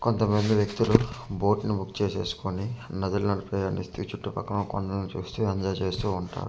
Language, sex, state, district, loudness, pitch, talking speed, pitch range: Telugu, male, Andhra Pradesh, Manyam, -28 LUFS, 100 Hz, 185 wpm, 95-105 Hz